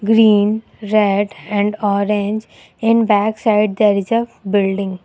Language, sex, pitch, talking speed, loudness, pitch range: English, female, 210 Hz, 130 wpm, -16 LUFS, 200-220 Hz